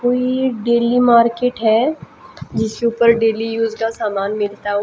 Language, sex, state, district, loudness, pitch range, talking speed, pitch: Hindi, female, Haryana, Jhajjar, -17 LUFS, 220-240 Hz, 160 wpm, 225 Hz